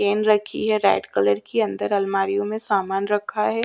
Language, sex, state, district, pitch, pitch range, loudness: Hindi, female, Haryana, Charkhi Dadri, 205 Hz, 195-215 Hz, -22 LUFS